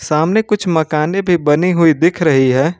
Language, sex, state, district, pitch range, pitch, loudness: Hindi, male, Jharkhand, Ranchi, 150-180 Hz, 165 Hz, -14 LUFS